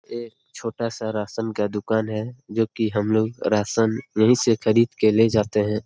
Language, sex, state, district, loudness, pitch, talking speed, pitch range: Hindi, male, Bihar, Araria, -22 LUFS, 110 Hz, 185 wpm, 105-115 Hz